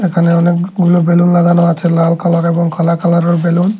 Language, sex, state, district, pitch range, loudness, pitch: Bengali, male, Tripura, Unakoti, 170-175 Hz, -12 LUFS, 170 Hz